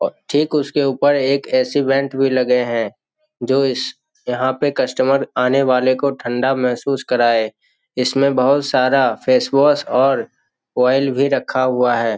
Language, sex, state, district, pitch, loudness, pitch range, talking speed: Hindi, male, Bihar, Jamui, 130 Hz, -17 LUFS, 125-140 Hz, 160 wpm